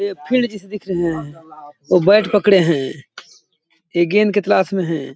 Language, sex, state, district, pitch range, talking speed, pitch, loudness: Hindi, male, Chhattisgarh, Balrampur, 165-205 Hz, 185 wpm, 185 Hz, -17 LUFS